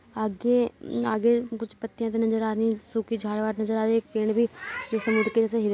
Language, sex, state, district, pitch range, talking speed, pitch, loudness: Hindi, female, Uttar Pradesh, Etah, 220-230 Hz, 270 wpm, 225 Hz, -26 LUFS